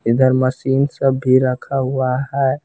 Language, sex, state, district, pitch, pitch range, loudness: Hindi, female, Bihar, West Champaran, 130 Hz, 130-135 Hz, -17 LUFS